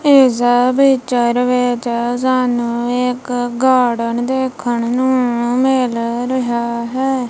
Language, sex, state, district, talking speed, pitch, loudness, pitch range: Punjabi, female, Punjab, Kapurthala, 90 wpm, 245 Hz, -15 LUFS, 240-255 Hz